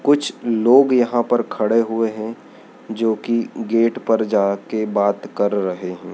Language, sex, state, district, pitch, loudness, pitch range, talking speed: Hindi, male, Madhya Pradesh, Dhar, 115 Hz, -19 LUFS, 100-115 Hz, 165 wpm